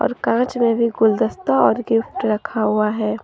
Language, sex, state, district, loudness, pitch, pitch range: Hindi, female, Jharkhand, Deoghar, -18 LUFS, 225 Hz, 215-235 Hz